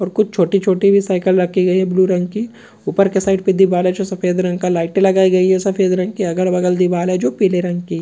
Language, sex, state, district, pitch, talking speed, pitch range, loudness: Marwari, female, Rajasthan, Nagaur, 185 Hz, 245 wpm, 180-195 Hz, -15 LUFS